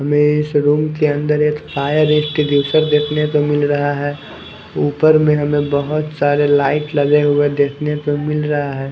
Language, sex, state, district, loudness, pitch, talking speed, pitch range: Hindi, male, Chandigarh, Chandigarh, -16 LUFS, 150 Hz, 170 wpm, 145-150 Hz